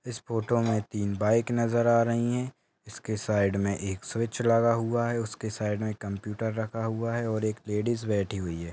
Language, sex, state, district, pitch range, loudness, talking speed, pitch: Hindi, male, Maharashtra, Sindhudurg, 105-115 Hz, -28 LUFS, 205 wpm, 110 Hz